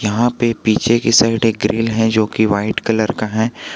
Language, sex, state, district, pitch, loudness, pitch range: Hindi, male, Jharkhand, Garhwa, 110 Hz, -16 LUFS, 110-115 Hz